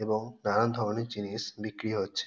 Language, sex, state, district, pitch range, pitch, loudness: Bengali, male, West Bengal, North 24 Parganas, 105-115 Hz, 110 Hz, -32 LUFS